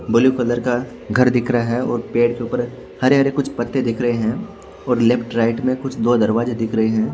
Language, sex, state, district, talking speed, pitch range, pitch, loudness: Hindi, male, Haryana, Jhajjar, 235 wpm, 115-125 Hz, 120 Hz, -19 LUFS